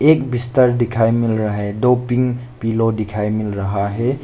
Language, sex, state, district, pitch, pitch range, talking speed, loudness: Hindi, male, Arunachal Pradesh, Lower Dibang Valley, 115 Hz, 105-125 Hz, 185 wpm, -18 LUFS